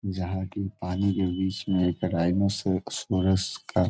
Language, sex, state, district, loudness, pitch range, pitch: Hindi, male, Bihar, Gopalganj, -27 LUFS, 90-100 Hz, 95 Hz